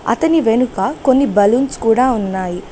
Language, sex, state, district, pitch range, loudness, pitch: Telugu, female, Telangana, Mahabubabad, 205-265 Hz, -15 LUFS, 230 Hz